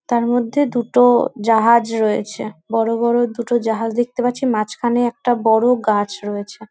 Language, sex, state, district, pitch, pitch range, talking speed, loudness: Bengali, female, West Bengal, North 24 Parganas, 235 Hz, 220-240 Hz, 150 wpm, -17 LUFS